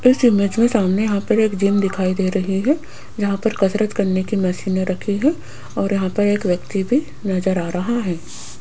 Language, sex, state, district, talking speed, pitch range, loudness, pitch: Hindi, female, Rajasthan, Jaipur, 210 wpm, 190-220 Hz, -19 LUFS, 200 Hz